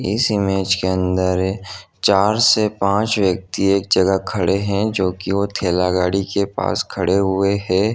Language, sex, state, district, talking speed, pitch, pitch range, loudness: Hindi, male, Jharkhand, Jamtara, 160 wpm, 95 Hz, 95-100 Hz, -18 LUFS